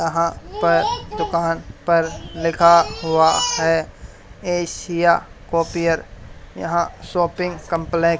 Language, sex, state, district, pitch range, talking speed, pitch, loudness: Hindi, male, Haryana, Charkhi Dadri, 165-170 Hz, 95 wpm, 170 Hz, -19 LUFS